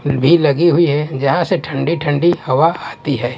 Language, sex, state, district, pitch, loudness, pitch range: Hindi, male, Punjab, Kapurthala, 150 Hz, -15 LUFS, 140-170 Hz